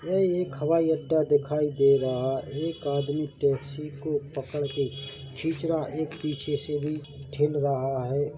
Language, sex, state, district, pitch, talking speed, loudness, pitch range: Hindi, male, Chhattisgarh, Bilaspur, 145 Hz, 155 wpm, -27 LUFS, 140-155 Hz